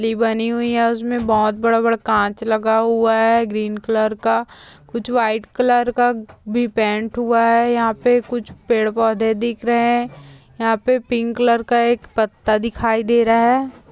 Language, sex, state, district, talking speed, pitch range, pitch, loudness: Hindi, female, Uttar Pradesh, Jyotiba Phule Nagar, 175 wpm, 220-235 Hz, 230 Hz, -18 LUFS